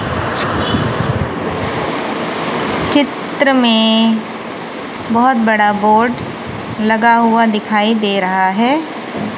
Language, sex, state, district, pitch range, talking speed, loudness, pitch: Hindi, female, Punjab, Kapurthala, 215-235 Hz, 70 wpm, -14 LUFS, 225 Hz